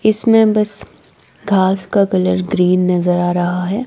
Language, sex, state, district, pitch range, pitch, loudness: Hindi, female, Himachal Pradesh, Shimla, 180-210 Hz, 190 Hz, -15 LUFS